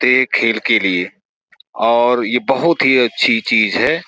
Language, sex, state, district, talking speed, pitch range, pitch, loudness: Hindi, male, Uttar Pradesh, Gorakhpur, 160 wpm, 115-130 Hz, 120 Hz, -14 LUFS